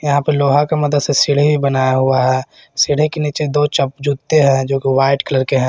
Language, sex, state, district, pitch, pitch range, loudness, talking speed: Hindi, male, Jharkhand, Garhwa, 140 Hz, 135-150 Hz, -15 LUFS, 230 wpm